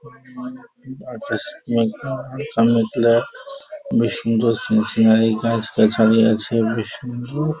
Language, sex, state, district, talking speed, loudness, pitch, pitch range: Bengali, male, West Bengal, Jhargram, 70 wpm, -19 LUFS, 115 Hz, 115-145 Hz